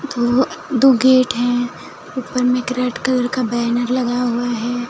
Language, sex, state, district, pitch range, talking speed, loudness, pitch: Hindi, female, Bihar, Katihar, 245-255 Hz, 145 wpm, -17 LUFS, 250 Hz